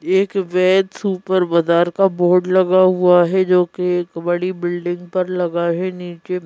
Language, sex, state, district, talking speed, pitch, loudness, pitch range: Hindi, female, Madhya Pradesh, Bhopal, 160 wpm, 180 Hz, -17 LUFS, 175-185 Hz